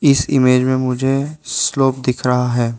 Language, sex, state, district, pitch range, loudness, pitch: Hindi, male, Arunachal Pradesh, Lower Dibang Valley, 125-135 Hz, -16 LUFS, 130 Hz